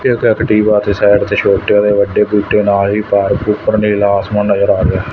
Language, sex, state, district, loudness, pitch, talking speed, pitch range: Punjabi, male, Punjab, Fazilka, -12 LUFS, 105 Hz, 235 wpm, 100-105 Hz